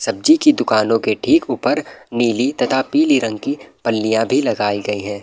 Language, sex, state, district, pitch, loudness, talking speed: Hindi, male, Bihar, Madhepura, 115 Hz, -17 LUFS, 195 wpm